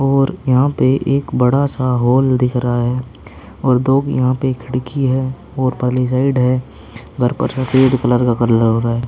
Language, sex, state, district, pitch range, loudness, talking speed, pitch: Hindi, male, Uttarakhand, Tehri Garhwal, 125-130 Hz, -16 LUFS, 185 wpm, 125 Hz